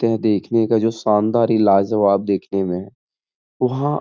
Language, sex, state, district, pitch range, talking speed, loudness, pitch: Hindi, male, Uttar Pradesh, Etah, 100-115 Hz, 210 wpm, -18 LUFS, 110 Hz